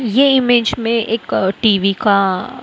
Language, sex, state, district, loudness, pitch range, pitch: Hindi, female, Maharashtra, Mumbai Suburban, -15 LUFS, 195-245 Hz, 230 Hz